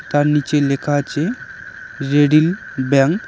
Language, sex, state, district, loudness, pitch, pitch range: Bengali, male, West Bengal, Cooch Behar, -17 LUFS, 145 Hz, 140-150 Hz